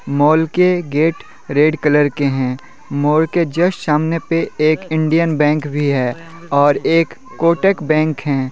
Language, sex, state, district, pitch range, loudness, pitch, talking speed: Hindi, male, Jharkhand, Deoghar, 145-165 Hz, -16 LUFS, 155 Hz, 155 wpm